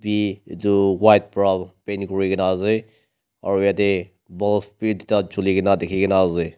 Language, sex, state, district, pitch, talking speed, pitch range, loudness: Nagamese, male, Nagaland, Dimapur, 100 Hz, 165 wpm, 95-105 Hz, -20 LUFS